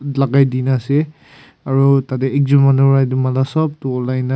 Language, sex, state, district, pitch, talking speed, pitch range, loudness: Nagamese, male, Nagaland, Kohima, 135 Hz, 190 wpm, 130-140 Hz, -15 LUFS